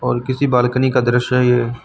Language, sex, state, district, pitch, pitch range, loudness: Hindi, male, Uttar Pradesh, Lucknow, 125 Hz, 120-130 Hz, -16 LUFS